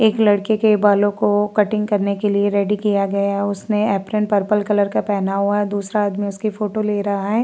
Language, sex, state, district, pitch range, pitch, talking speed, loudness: Hindi, female, Uttar Pradesh, Varanasi, 200-210 Hz, 205 Hz, 225 wpm, -18 LUFS